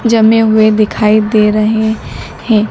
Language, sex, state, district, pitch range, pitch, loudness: Hindi, male, Madhya Pradesh, Dhar, 215-220 Hz, 220 Hz, -10 LUFS